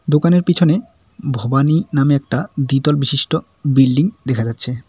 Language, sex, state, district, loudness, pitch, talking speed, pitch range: Bengali, male, West Bengal, Cooch Behar, -16 LUFS, 140 Hz, 125 wpm, 135-160 Hz